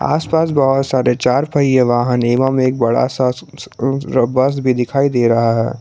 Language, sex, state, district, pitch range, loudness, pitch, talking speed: Hindi, male, Jharkhand, Garhwa, 120-140 Hz, -15 LUFS, 130 Hz, 175 wpm